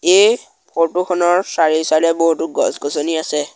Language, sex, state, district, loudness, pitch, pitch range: Assamese, male, Assam, Sonitpur, -16 LUFS, 165 Hz, 160-180 Hz